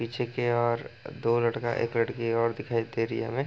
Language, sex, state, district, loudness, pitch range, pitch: Hindi, male, Bihar, East Champaran, -28 LUFS, 115-120 Hz, 115 Hz